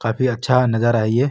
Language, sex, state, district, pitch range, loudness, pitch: Marwari, male, Rajasthan, Nagaur, 115-125 Hz, -18 LUFS, 120 Hz